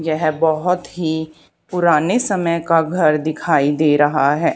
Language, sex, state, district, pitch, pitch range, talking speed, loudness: Hindi, female, Haryana, Charkhi Dadri, 160 Hz, 155-175 Hz, 145 wpm, -17 LUFS